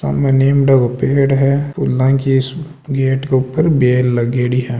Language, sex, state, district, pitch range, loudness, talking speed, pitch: Hindi, male, Rajasthan, Nagaur, 125-140 Hz, -14 LUFS, 160 wpm, 135 Hz